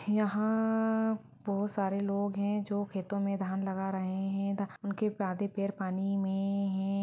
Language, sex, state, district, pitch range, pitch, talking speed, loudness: Hindi, female, Chhattisgarh, Rajnandgaon, 195-205 Hz, 200 Hz, 160 wpm, -33 LUFS